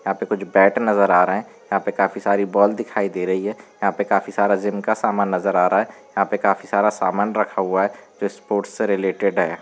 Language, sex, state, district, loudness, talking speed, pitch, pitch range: Hindi, male, Uttar Pradesh, Varanasi, -20 LUFS, 250 wpm, 100 Hz, 95-105 Hz